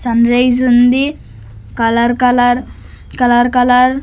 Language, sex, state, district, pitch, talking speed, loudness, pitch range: Telugu, female, Andhra Pradesh, Sri Satya Sai, 245 Hz, 105 wpm, -12 LUFS, 235-250 Hz